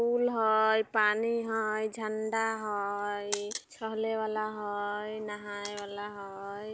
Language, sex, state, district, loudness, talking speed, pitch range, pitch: Bajjika, female, Bihar, Vaishali, -32 LUFS, 105 wpm, 205-220 Hz, 215 Hz